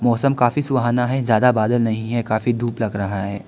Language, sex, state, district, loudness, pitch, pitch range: Hindi, male, Arunachal Pradesh, Lower Dibang Valley, -19 LUFS, 120 Hz, 110-125 Hz